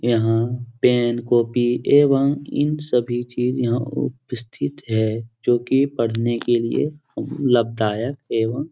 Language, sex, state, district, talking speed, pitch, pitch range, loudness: Hindi, male, Bihar, Jahanabad, 125 wpm, 120 Hz, 115-135 Hz, -21 LUFS